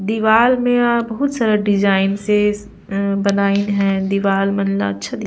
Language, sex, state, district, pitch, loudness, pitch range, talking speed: Surgujia, female, Chhattisgarh, Sarguja, 200 Hz, -17 LUFS, 195-220 Hz, 180 wpm